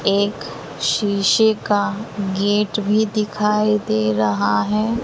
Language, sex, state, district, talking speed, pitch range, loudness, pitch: Hindi, female, Bihar, West Champaran, 105 wpm, 200-210 Hz, -19 LUFS, 205 Hz